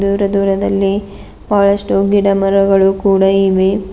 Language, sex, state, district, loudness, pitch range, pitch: Kannada, female, Karnataka, Bidar, -13 LUFS, 195-200 Hz, 195 Hz